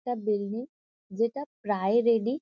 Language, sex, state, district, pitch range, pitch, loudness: Bengali, female, West Bengal, Kolkata, 210-245 Hz, 230 Hz, -28 LUFS